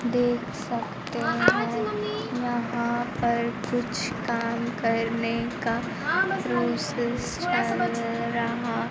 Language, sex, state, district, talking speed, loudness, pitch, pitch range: Hindi, female, Bihar, Kaimur, 80 wpm, -27 LUFS, 235 Hz, 230-240 Hz